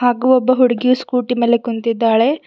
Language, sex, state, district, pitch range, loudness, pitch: Kannada, female, Karnataka, Bidar, 235-255 Hz, -15 LUFS, 245 Hz